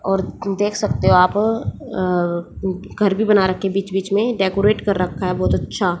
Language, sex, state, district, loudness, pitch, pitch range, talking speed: Hindi, female, Haryana, Jhajjar, -19 LUFS, 195 Hz, 185-205 Hz, 200 wpm